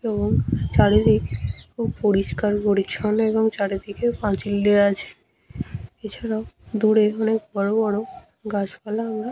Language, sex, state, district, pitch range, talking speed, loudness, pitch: Bengali, female, West Bengal, Malda, 205-220 Hz, 115 wpm, -22 LUFS, 215 Hz